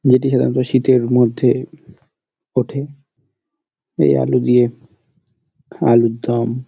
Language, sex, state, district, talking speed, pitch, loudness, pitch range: Bengali, male, West Bengal, Dakshin Dinajpur, 80 wpm, 125 Hz, -16 LUFS, 120-135 Hz